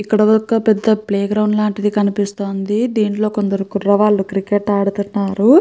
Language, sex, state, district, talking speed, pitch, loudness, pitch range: Telugu, female, Andhra Pradesh, Chittoor, 130 wpm, 205 Hz, -16 LUFS, 200-215 Hz